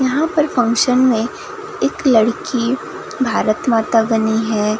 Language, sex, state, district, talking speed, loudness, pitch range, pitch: Hindi, female, Bihar, Katihar, 125 wpm, -16 LUFS, 220-265 Hz, 240 Hz